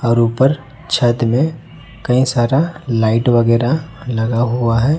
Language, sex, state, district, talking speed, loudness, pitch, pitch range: Hindi, male, Chhattisgarh, Raipur, 130 wpm, -16 LUFS, 125 Hz, 115-145 Hz